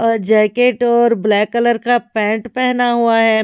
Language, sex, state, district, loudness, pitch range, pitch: Hindi, female, Himachal Pradesh, Shimla, -14 LUFS, 220-240 Hz, 235 Hz